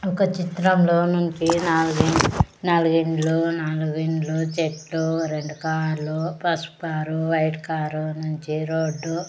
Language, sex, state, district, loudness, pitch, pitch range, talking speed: Telugu, female, Andhra Pradesh, Sri Satya Sai, -23 LUFS, 160 Hz, 155-165 Hz, 105 wpm